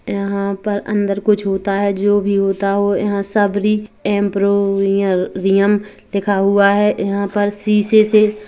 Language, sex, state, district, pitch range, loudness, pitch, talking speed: Hindi, female, Chhattisgarh, Kabirdham, 200-205 Hz, -16 LUFS, 200 Hz, 140 wpm